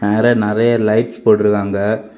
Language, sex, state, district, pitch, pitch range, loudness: Tamil, male, Tamil Nadu, Kanyakumari, 110 Hz, 105-115 Hz, -15 LUFS